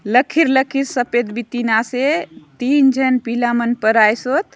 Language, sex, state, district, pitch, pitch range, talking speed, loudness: Halbi, female, Chhattisgarh, Bastar, 245 Hz, 235-270 Hz, 130 wpm, -16 LUFS